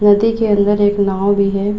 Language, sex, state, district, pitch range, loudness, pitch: Hindi, female, Uttar Pradesh, Budaun, 200-210 Hz, -14 LUFS, 205 Hz